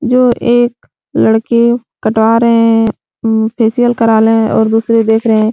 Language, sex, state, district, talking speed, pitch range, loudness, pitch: Hindi, female, Uttar Pradesh, Etah, 165 wpm, 220-235 Hz, -11 LUFS, 225 Hz